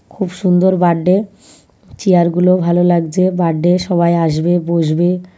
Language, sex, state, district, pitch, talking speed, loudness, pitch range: Bengali, female, West Bengal, North 24 Parganas, 175 Hz, 145 wpm, -14 LUFS, 170-185 Hz